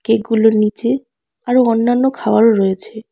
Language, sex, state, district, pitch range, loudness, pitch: Bengali, female, West Bengal, Alipurduar, 220-245 Hz, -15 LUFS, 225 Hz